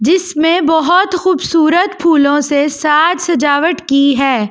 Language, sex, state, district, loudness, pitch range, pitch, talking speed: Hindi, female, Delhi, New Delhi, -12 LUFS, 285-350 Hz, 320 Hz, 120 wpm